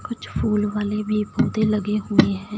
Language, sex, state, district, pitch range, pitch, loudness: Hindi, female, Punjab, Fazilka, 210-215 Hz, 210 Hz, -22 LUFS